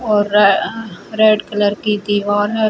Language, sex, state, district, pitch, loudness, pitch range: Hindi, female, Chhattisgarh, Rajnandgaon, 210 Hz, -15 LUFS, 205-215 Hz